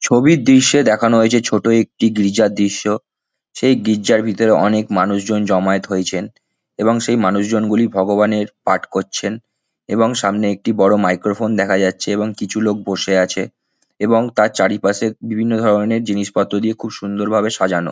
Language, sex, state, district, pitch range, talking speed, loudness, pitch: Bengali, male, West Bengal, Kolkata, 100-115 Hz, 145 wpm, -16 LUFS, 105 Hz